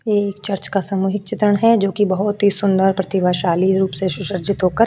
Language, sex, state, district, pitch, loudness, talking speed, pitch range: Hindi, female, Uttar Pradesh, Jalaun, 195 Hz, -18 LUFS, 210 wpm, 190-205 Hz